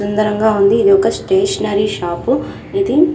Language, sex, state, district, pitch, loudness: Telugu, female, Andhra Pradesh, Krishna, 220 Hz, -15 LUFS